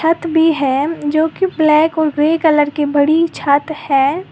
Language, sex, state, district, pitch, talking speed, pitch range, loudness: Hindi, female, Uttar Pradesh, Lalitpur, 310 Hz, 180 wpm, 290-325 Hz, -14 LUFS